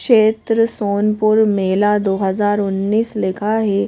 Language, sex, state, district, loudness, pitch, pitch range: Hindi, female, Madhya Pradesh, Bhopal, -16 LUFS, 210 Hz, 200-220 Hz